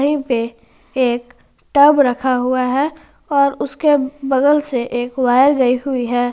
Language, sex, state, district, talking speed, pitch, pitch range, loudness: Hindi, female, Jharkhand, Garhwa, 140 wpm, 265 Hz, 245-285 Hz, -16 LUFS